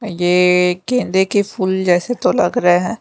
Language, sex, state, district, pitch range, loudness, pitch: Hindi, female, Delhi, New Delhi, 180-220 Hz, -15 LUFS, 190 Hz